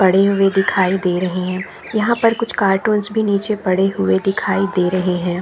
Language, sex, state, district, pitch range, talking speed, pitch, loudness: Hindi, female, Chhattisgarh, Raigarh, 185-205 Hz, 200 wpm, 195 Hz, -17 LUFS